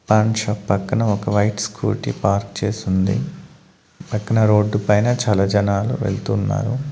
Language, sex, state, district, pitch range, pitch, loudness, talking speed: Telugu, male, Andhra Pradesh, Manyam, 100-110 Hz, 105 Hz, -19 LUFS, 120 wpm